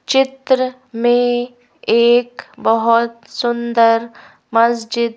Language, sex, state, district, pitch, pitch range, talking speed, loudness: Hindi, female, Madhya Pradesh, Bhopal, 235 Hz, 230-245 Hz, 70 wpm, -16 LUFS